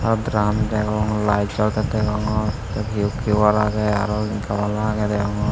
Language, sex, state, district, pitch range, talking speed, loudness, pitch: Chakma, male, Tripura, Unakoti, 105-110 Hz, 150 wpm, -21 LUFS, 105 Hz